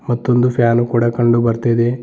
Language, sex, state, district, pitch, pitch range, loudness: Kannada, male, Karnataka, Bidar, 120 Hz, 115-120 Hz, -15 LUFS